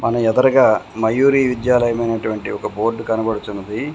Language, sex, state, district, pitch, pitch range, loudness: Telugu, male, Telangana, Komaram Bheem, 115 Hz, 110-125 Hz, -17 LUFS